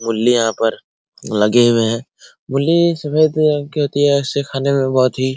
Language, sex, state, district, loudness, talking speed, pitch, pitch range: Hindi, male, Bihar, Araria, -16 LUFS, 200 wpm, 135 Hz, 120-145 Hz